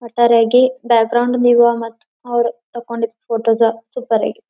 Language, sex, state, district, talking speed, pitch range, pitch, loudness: Kannada, female, Karnataka, Belgaum, 120 wpm, 230-240 Hz, 235 Hz, -15 LUFS